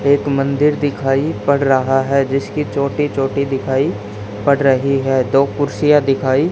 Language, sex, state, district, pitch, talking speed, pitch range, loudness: Hindi, male, Haryana, Charkhi Dadri, 135 Hz, 145 wpm, 135-140 Hz, -16 LUFS